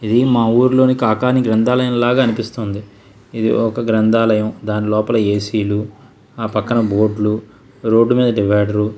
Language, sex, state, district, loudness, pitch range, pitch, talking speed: Telugu, male, Andhra Pradesh, Krishna, -16 LUFS, 105-120 Hz, 110 Hz, 140 wpm